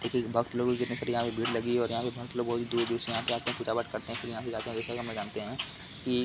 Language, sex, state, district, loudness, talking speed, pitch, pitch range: Hindi, male, Bihar, Kishanganj, -32 LUFS, 305 wpm, 120 Hz, 115-120 Hz